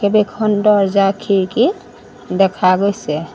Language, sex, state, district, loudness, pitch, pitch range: Assamese, female, Assam, Sonitpur, -15 LUFS, 200 Hz, 190-210 Hz